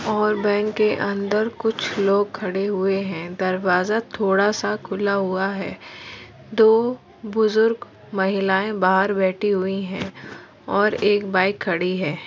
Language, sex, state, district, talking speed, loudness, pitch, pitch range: Hindi, female, Uttar Pradesh, Varanasi, 130 wpm, -21 LUFS, 200 Hz, 190-215 Hz